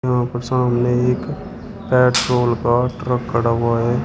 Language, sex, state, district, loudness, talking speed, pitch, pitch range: Hindi, male, Uttar Pradesh, Shamli, -18 LUFS, 150 wpm, 120 Hz, 120-125 Hz